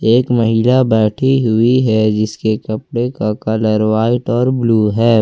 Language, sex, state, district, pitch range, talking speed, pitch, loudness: Hindi, male, Jharkhand, Ranchi, 110-120 Hz, 150 wpm, 115 Hz, -14 LUFS